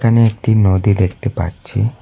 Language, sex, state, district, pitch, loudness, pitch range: Bengali, male, West Bengal, Cooch Behar, 110 Hz, -15 LUFS, 95-115 Hz